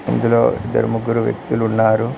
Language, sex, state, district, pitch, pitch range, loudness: Telugu, male, Telangana, Mahabubabad, 115 Hz, 110-115 Hz, -17 LUFS